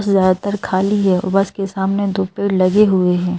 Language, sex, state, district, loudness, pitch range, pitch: Hindi, male, Madhya Pradesh, Bhopal, -16 LUFS, 185-200 Hz, 195 Hz